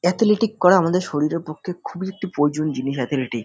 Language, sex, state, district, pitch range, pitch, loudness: Bengali, male, West Bengal, North 24 Parganas, 145-185 Hz, 170 Hz, -21 LUFS